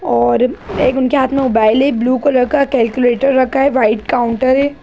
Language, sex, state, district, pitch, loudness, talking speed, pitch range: Hindi, female, Bihar, Jahanabad, 255 Hz, -13 LUFS, 200 wpm, 240-275 Hz